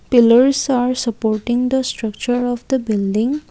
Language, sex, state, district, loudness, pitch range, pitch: English, female, Assam, Kamrup Metropolitan, -17 LUFS, 225-255 Hz, 245 Hz